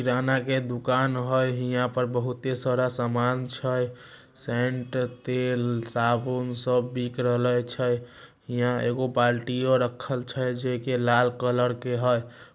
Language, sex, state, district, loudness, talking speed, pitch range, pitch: Magahi, male, Bihar, Samastipur, -26 LUFS, 130 wpm, 120-125 Hz, 125 Hz